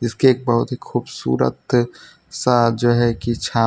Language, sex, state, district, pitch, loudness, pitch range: Hindi, male, Gujarat, Valsad, 120 Hz, -19 LUFS, 115-125 Hz